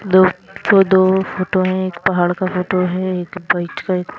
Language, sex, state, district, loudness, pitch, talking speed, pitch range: Hindi, female, Himachal Pradesh, Shimla, -17 LUFS, 185 Hz, 185 wpm, 180-185 Hz